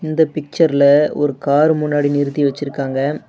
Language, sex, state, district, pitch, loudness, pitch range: Tamil, male, Tamil Nadu, Namakkal, 145 Hz, -16 LUFS, 140-150 Hz